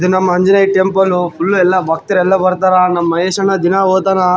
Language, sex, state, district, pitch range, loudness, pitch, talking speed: Kannada, male, Karnataka, Raichur, 180-190 Hz, -12 LUFS, 185 Hz, 165 wpm